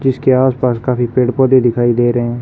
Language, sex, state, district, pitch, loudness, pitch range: Hindi, male, Rajasthan, Bikaner, 125 Hz, -13 LUFS, 120-130 Hz